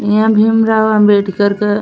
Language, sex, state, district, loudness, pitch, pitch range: Bhojpuri, female, Uttar Pradesh, Ghazipur, -11 LUFS, 210 Hz, 205-220 Hz